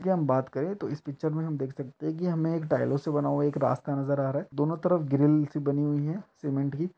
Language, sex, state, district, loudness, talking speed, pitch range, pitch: Hindi, male, Uttar Pradesh, Etah, -28 LUFS, 285 wpm, 140-160 Hz, 145 Hz